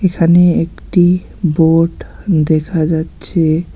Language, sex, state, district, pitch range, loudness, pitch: Bengali, male, West Bengal, Alipurduar, 160-175 Hz, -13 LUFS, 165 Hz